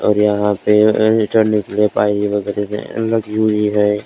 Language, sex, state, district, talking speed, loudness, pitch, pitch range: Hindi, male, Maharashtra, Gondia, 105 wpm, -16 LUFS, 105 Hz, 105-110 Hz